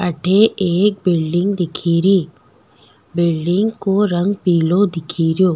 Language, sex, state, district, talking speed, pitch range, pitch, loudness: Rajasthani, female, Rajasthan, Nagaur, 95 wpm, 165-195 Hz, 175 Hz, -16 LUFS